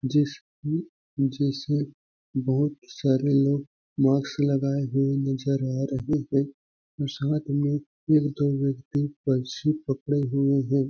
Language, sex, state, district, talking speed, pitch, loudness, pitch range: Hindi, male, Chhattisgarh, Balrampur, 120 wpm, 140 Hz, -26 LUFS, 135-145 Hz